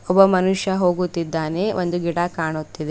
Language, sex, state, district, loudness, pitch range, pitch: Kannada, female, Karnataka, Bidar, -20 LUFS, 165-185 Hz, 175 Hz